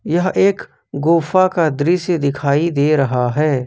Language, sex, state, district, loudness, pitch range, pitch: Hindi, male, Jharkhand, Ranchi, -16 LUFS, 140-175 Hz, 155 Hz